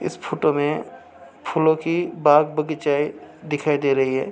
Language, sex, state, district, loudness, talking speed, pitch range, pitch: Hindi, male, Maharashtra, Aurangabad, -21 LUFS, 150 wpm, 145-155 Hz, 150 Hz